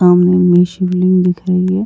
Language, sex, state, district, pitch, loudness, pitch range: Hindi, female, Goa, North and South Goa, 180 Hz, -12 LUFS, 180-185 Hz